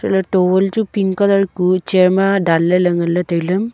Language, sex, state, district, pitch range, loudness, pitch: Wancho, female, Arunachal Pradesh, Longding, 180-195 Hz, -15 LUFS, 185 Hz